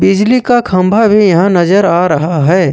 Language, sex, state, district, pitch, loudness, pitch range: Hindi, male, Jharkhand, Ranchi, 185 Hz, -9 LUFS, 175-210 Hz